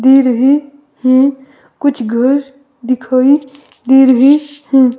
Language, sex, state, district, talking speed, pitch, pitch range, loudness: Hindi, female, Himachal Pradesh, Shimla, 110 wpm, 270 Hz, 255-280 Hz, -11 LUFS